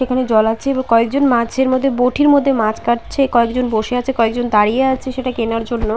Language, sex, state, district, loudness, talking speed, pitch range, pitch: Bengali, female, West Bengal, Paschim Medinipur, -16 LUFS, 190 wpm, 230-265 Hz, 245 Hz